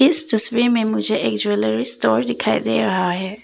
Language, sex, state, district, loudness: Hindi, female, Arunachal Pradesh, Papum Pare, -16 LUFS